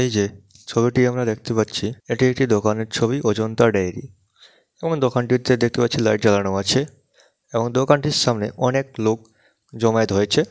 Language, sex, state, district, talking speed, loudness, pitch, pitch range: Bengali, male, West Bengal, Dakshin Dinajpur, 135 wpm, -20 LUFS, 115 Hz, 110-130 Hz